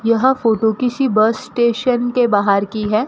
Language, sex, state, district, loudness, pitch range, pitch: Hindi, female, Rajasthan, Bikaner, -16 LUFS, 215-250 Hz, 230 Hz